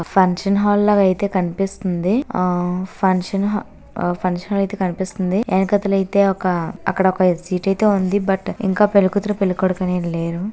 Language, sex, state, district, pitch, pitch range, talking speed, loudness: Telugu, female, Andhra Pradesh, Visakhapatnam, 190 Hz, 185-200 Hz, 130 wpm, -19 LUFS